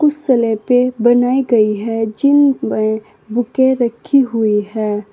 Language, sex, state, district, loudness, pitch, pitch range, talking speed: Hindi, female, Uttar Pradesh, Saharanpur, -15 LUFS, 240 Hz, 220-260 Hz, 130 wpm